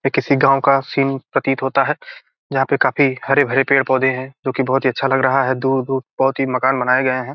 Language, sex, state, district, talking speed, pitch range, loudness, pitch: Hindi, male, Bihar, Gopalganj, 245 wpm, 130-135 Hz, -17 LUFS, 135 Hz